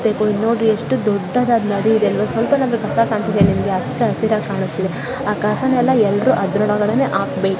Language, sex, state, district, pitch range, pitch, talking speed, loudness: Kannada, female, Karnataka, Shimoga, 205-235 Hz, 215 Hz, 180 wpm, -17 LUFS